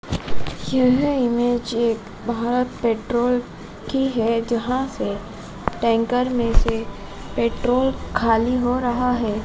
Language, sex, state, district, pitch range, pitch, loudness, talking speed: Hindi, male, Madhya Pradesh, Dhar, 230-250 Hz, 240 Hz, -22 LUFS, 110 wpm